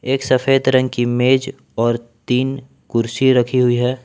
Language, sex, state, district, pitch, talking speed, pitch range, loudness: Hindi, male, Jharkhand, Palamu, 130 Hz, 165 wpm, 120-130 Hz, -17 LUFS